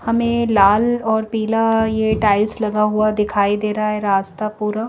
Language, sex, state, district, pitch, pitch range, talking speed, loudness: Hindi, female, Madhya Pradesh, Bhopal, 215 Hz, 210-225 Hz, 170 wpm, -17 LUFS